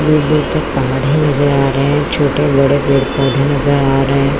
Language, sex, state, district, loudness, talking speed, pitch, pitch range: Hindi, female, Chhattisgarh, Bilaspur, -13 LUFS, 220 wpm, 140 Hz, 135-145 Hz